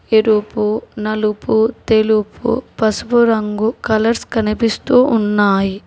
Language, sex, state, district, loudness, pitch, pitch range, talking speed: Telugu, female, Telangana, Hyderabad, -16 LUFS, 220 Hz, 210-230 Hz, 80 wpm